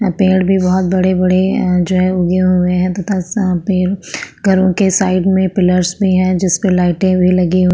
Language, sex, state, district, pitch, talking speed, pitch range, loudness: Hindi, female, Uttarakhand, Tehri Garhwal, 185 Hz, 200 wpm, 180-190 Hz, -13 LUFS